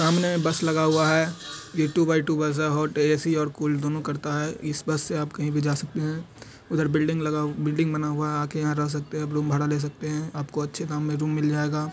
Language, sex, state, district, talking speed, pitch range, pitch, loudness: Hindi, male, Bihar, Supaul, 265 wpm, 150-155 Hz, 150 Hz, -25 LUFS